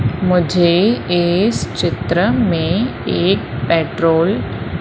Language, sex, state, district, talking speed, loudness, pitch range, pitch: Hindi, female, Madhya Pradesh, Umaria, 85 wpm, -16 LUFS, 125-180 Hz, 170 Hz